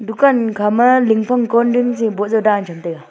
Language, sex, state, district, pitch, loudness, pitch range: Wancho, female, Arunachal Pradesh, Longding, 225 Hz, -15 LUFS, 210-245 Hz